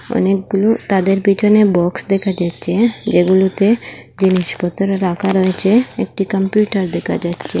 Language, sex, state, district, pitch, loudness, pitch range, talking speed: Bengali, female, Assam, Hailakandi, 195 Hz, -15 LUFS, 185-200 Hz, 120 wpm